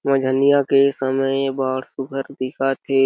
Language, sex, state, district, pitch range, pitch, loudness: Chhattisgarhi, male, Chhattisgarh, Sarguja, 130-135 Hz, 135 Hz, -20 LUFS